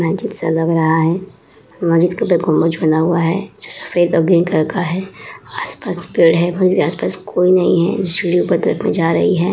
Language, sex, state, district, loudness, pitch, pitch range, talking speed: Hindi, female, Uttar Pradesh, Muzaffarnagar, -16 LUFS, 175 Hz, 165-185 Hz, 225 wpm